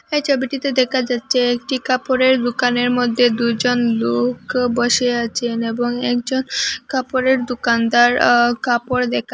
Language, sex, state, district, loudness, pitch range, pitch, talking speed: Bengali, female, Assam, Hailakandi, -17 LUFS, 240-255 Hz, 245 Hz, 120 wpm